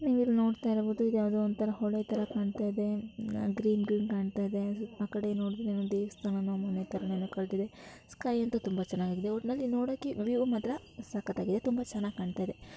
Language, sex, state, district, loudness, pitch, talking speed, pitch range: Kannada, female, Karnataka, Shimoga, -33 LUFS, 210 Hz, 165 wpm, 200-225 Hz